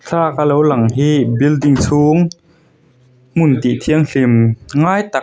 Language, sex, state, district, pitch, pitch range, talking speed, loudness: Mizo, male, Mizoram, Aizawl, 145 Hz, 125-155 Hz, 115 wpm, -13 LUFS